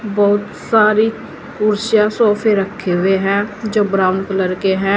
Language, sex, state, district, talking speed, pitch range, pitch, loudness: Hindi, female, Uttar Pradesh, Saharanpur, 145 wpm, 195-215 Hz, 205 Hz, -16 LUFS